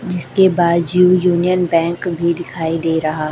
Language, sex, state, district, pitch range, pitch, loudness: Hindi, male, Chhattisgarh, Raipur, 165-180 Hz, 170 Hz, -15 LUFS